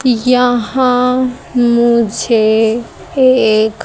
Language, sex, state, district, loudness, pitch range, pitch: Hindi, female, Haryana, Jhajjar, -12 LUFS, 225-250 Hz, 240 Hz